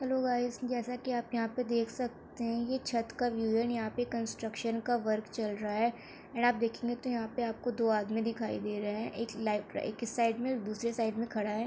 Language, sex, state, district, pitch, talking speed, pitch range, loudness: Hindi, female, Bihar, Bhagalpur, 230 Hz, 210 wpm, 220-245 Hz, -34 LUFS